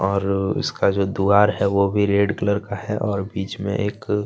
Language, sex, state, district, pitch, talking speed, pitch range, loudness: Hindi, male, Chhattisgarh, Kabirdham, 100 Hz, 225 wpm, 100-105 Hz, -21 LUFS